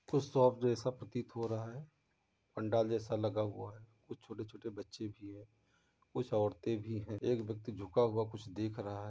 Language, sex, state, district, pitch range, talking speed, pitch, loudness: Hindi, male, Uttar Pradesh, Muzaffarnagar, 105-120 Hz, 200 wpm, 110 Hz, -38 LUFS